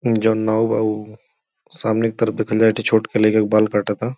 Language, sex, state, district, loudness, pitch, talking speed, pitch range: Bhojpuri, male, Uttar Pradesh, Gorakhpur, -18 LUFS, 110 Hz, 245 wpm, 110-115 Hz